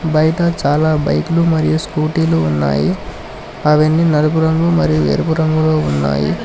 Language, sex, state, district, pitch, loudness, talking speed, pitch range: Telugu, male, Telangana, Hyderabad, 155 Hz, -15 LUFS, 140 wpm, 120-160 Hz